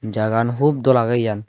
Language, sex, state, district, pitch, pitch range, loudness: Chakma, male, Tripura, Dhalai, 115 Hz, 110-130 Hz, -18 LUFS